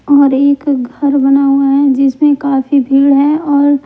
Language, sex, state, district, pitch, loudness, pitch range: Hindi, female, Bihar, Patna, 280 Hz, -10 LUFS, 275-285 Hz